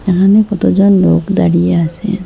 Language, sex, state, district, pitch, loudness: Bengali, female, Assam, Hailakandi, 190 Hz, -11 LUFS